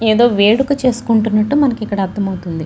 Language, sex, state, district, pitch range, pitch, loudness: Telugu, female, Andhra Pradesh, Chittoor, 200-240 Hz, 220 Hz, -15 LUFS